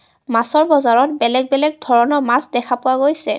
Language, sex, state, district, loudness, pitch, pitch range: Assamese, female, Assam, Kamrup Metropolitan, -15 LUFS, 260 Hz, 245-290 Hz